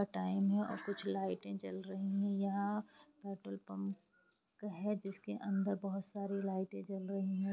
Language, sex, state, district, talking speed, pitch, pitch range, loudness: Hindi, female, Jharkhand, Jamtara, 160 wpm, 195 Hz, 190-200 Hz, -40 LUFS